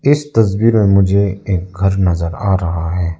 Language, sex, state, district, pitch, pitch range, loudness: Hindi, male, Arunachal Pradesh, Lower Dibang Valley, 95 Hz, 90-105 Hz, -15 LUFS